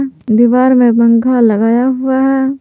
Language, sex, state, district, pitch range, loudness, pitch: Hindi, female, Jharkhand, Palamu, 235-265 Hz, -11 LUFS, 250 Hz